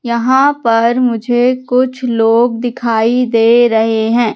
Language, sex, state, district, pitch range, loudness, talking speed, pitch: Hindi, female, Madhya Pradesh, Katni, 230-250 Hz, -12 LUFS, 125 wpm, 240 Hz